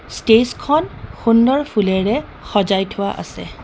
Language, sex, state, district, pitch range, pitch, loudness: Assamese, female, Assam, Kamrup Metropolitan, 200-245 Hz, 215 Hz, -17 LUFS